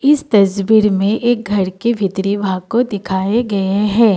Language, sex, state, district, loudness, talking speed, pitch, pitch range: Hindi, female, Assam, Kamrup Metropolitan, -15 LUFS, 170 wpm, 205 Hz, 195-230 Hz